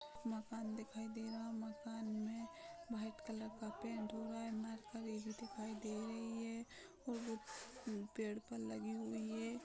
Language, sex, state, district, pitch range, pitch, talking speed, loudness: Hindi, female, Chhattisgarh, Kabirdham, 215-230 Hz, 220 Hz, 150 wpm, -47 LUFS